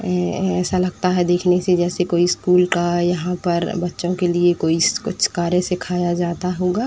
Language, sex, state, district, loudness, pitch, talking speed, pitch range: Hindi, female, Uttar Pradesh, Etah, -19 LUFS, 180 Hz, 175 wpm, 175-180 Hz